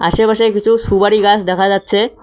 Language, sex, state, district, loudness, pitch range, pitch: Bengali, male, West Bengal, Cooch Behar, -13 LUFS, 195-220 Hz, 205 Hz